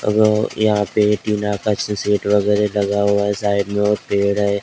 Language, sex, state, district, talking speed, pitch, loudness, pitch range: Hindi, male, Maharashtra, Gondia, 155 wpm, 105 Hz, -18 LUFS, 100-105 Hz